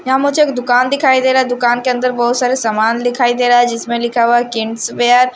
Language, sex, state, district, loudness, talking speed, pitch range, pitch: Hindi, female, Haryana, Charkhi Dadri, -13 LUFS, 280 wpm, 240-255 Hz, 245 Hz